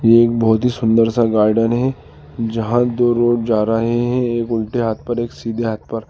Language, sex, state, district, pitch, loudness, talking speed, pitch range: Hindi, male, Uttar Pradesh, Lalitpur, 115 Hz, -17 LUFS, 205 wpm, 115-120 Hz